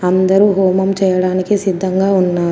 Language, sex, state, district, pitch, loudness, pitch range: Telugu, female, Telangana, Komaram Bheem, 190 Hz, -14 LUFS, 185-195 Hz